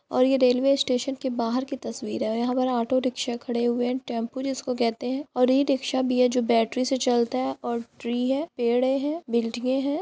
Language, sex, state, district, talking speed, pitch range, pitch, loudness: Hindi, female, Bihar, Lakhisarai, 225 wpm, 240-265 Hz, 255 Hz, -25 LUFS